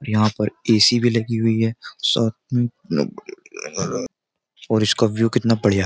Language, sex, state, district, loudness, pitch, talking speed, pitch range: Hindi, male, Uttar Pradesh, Jyotiba Phule Nagar, -20 LUFS, 115 Hz, 155 wpm, 110-120 Hz